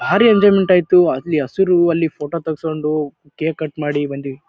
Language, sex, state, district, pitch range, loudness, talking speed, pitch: Kannada, male, Karnataka, Bijapur, 150-175 Hz, -16 LUFS, 160 wpm, 160 Hz